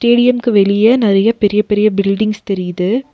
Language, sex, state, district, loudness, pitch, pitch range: Tamil, female, Tamil Nadu, Nilgiris, -13 LUFS, 210 Hz, 200-235 Hz